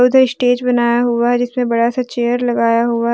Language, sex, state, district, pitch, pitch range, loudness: Hindi, female, Jharkhand, Deoghar, 240 Hz, 235-245 Hz, -15 LUFS